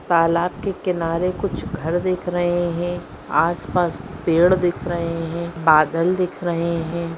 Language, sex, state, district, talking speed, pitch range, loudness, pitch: Hindi, male, West Bengal, Purulia, 140 wpm, 165-175 Hz, -21 LUFS, 170 Hz